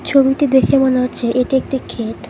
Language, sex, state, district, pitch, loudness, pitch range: Bengali, female, West Bengal, Cooch Behar, 265 Hz, -15 LUFS, 250-270 Hz